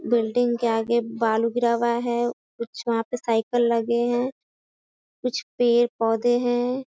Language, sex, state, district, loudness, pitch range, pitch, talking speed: Hindi, female, Bihar, Sitamarhi, -23 LUFS, 230-245 Hz, 235 Hz, 140 wpm